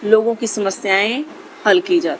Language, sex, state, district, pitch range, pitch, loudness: Hindi, female, Haryana, Rohtak, 205-345 Hz, 230 Hz, -17 LUFS